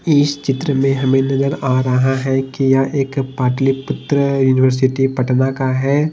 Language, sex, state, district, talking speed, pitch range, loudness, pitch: Hindi, male, Bihar, Patna, 155 wpm, 130-140 Hz, -16 LUFS, 135 Hz